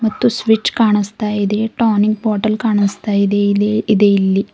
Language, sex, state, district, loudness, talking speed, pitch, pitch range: Kannada, female, Karnataka, Bidar, -15 LUFS, 145 wpm, 210 Hz, 205-220 Hz